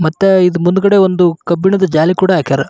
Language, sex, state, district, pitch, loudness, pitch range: Kannada, male, Karnataka, Raichur, 180 Hz, -11 LUFS, 165-190 Hz